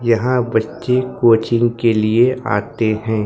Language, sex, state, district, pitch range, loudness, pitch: Hindi, male, Maharashtra, Gondia, 110-125 Hz, -16 LUFS, 115 Hz